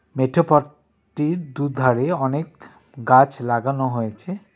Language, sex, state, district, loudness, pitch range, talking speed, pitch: Bengali, male, West Bengal, Darjeeling, -20 LUFS, 125-150 Hz, 90 wpm, 135 Hz